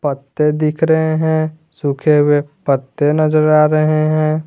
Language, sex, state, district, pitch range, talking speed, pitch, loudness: Hindi, male, Jharkhand, Garhwa, 145-155 Hz, 145 wpm, 155 Hz, -15 LUFS